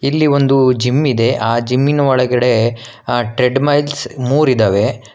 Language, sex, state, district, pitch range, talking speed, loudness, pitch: Kannada, male, Karnataka, Bangalore, 120-140 Hz, 140 wpm, -14 LUFS, 125 Hz